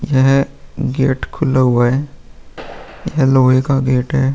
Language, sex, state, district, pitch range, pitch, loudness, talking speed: Hindi, male, Bihar, Vaishali, 130-140 Hz, 135 Hz, -15 LUFS, 140 wpm